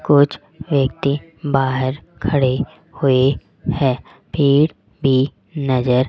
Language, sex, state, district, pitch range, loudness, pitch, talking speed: Hindi, female, Rajasthan, Jaipur, 130-145 Hz, -19 LUFS, 135 Hz, 100 wpm